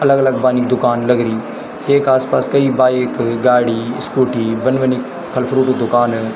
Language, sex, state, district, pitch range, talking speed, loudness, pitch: Garhwali, male, Uttarakhand, Tehri Garhwal, 120-130 Hz, 160 wpm, -15 LUFS, 125 Hz